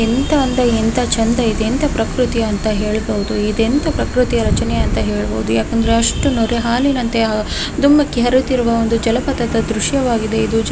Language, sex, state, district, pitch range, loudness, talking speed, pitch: Kannada, female, Karnataka, Dharwad, 220-250 Hz, -16 LUFS, 135 wpm, 230 Hz